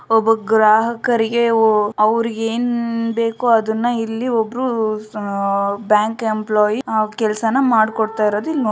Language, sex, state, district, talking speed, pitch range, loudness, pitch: Kannada, female, Karnataka, Shimoga, 115 wpm, 215-230 Hz, -17 LUFS, 225 Hz